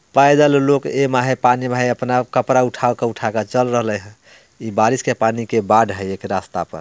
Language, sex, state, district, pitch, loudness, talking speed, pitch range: Bhojpuri, male, Bihar, Muzaffarpur, 125 Hz, -17 LUFS, 230 wpm, 110-130 Hz